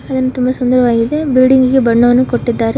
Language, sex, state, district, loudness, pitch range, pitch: Kannada, female, Karnataka, Koppal, -12 LUFS, 240-260 Hz, 255 Hz